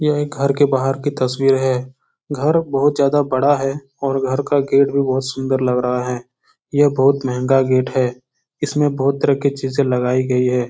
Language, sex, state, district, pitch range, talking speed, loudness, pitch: Hindi, male, Uttar Pradesh, Etah, 130-140 Hz, 200 wpm, -17 LUFS, 135 Hz